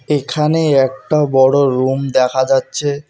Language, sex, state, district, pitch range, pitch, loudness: Bengali, male, West Bengal, Alipurduar, 130-150 Hz, 140 Hz, -14 LUFS